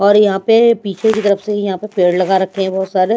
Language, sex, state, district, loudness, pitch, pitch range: Hindi, female, Bihar, Patna, -14 LUFS, 200 Hz, 190-215 Hz